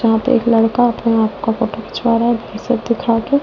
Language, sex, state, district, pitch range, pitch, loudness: Hindi, female, Delhi, New Delhi, 225-240 Hz, 230 Hz, -16 LUFS